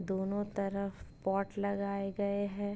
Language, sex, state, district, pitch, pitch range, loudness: Hindi, female, Uttar Pradesh, Ghazipur, 200 Hz, 195-200 Hz, -36 LUFS